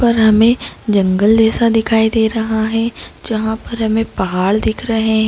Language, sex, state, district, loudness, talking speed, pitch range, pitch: Hindi, female, Jharkhand, Jamtara, -15 LUFS, 170 wpm, 220-225 Hz, 220 Hz